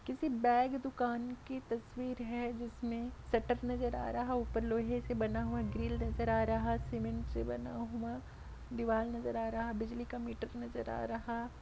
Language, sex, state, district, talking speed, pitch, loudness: Hindi, female, Chhattisgarh, Bilaspur, 175 wpm, 235 Hz, -38 LUFS